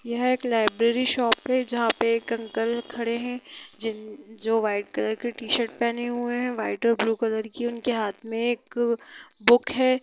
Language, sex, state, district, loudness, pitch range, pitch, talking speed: Hindi, female, Bihar, Sitamarhi, -25 LUFS, 225-240 Hz, 235 Hz, 185 wpm